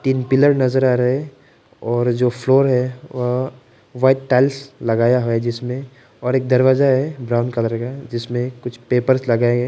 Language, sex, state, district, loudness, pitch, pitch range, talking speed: Hindi, male, Arunachal Pradesh, Papum Pare, -18 LUFS, 125 Hz, 120-130 Hz, 175 wpm